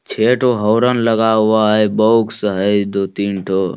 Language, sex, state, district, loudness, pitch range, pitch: Hindi, male, Bihar, Bhagalpur, -15 LUFS, 100-115 Hz, 110 Hz